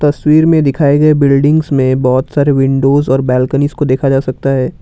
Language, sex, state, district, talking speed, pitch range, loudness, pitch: Hindi, male, Assam, Kamrup Metropolitan, 200 wpm, 135-150 Hz, -11 LUFS, 140 Hz